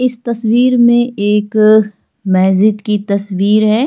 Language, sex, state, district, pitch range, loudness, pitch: Hindi, female, Chhattisgarh, Sukma, 205-235 Hz, -12 LUFS, 215 Hz